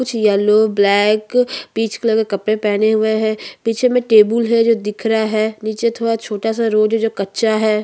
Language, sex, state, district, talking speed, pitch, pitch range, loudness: Hindi, female, Chhattisgarh, Bastar, 205 wpm, 220 Hz, 215-230 Hz, -16 LUFS